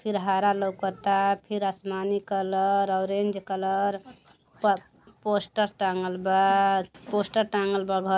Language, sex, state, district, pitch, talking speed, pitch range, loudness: Bhojpuri, female, Uttar Pradesh, Deoria, 195 Hz, 115 wpm, 190-200 Hz, -26 LUFS